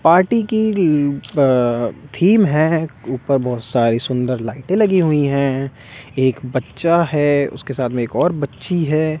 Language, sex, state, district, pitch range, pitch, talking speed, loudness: Hindi, male, Delhi, New Delhi, 125-165 Hz, 140 Hz, 155 wpm, -17 LUFS